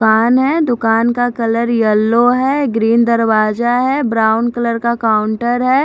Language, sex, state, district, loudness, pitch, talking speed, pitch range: Hindi, female, Odisha, Khordha, -14 LUFS, 235 Hz, 155 wpm, 225-245 Hz